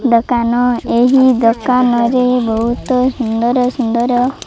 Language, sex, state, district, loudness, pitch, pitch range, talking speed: Odia, female, Odisha, Malkangiri, -13 LUFS, 245 Hz, 235-250 Hz, 105 wpm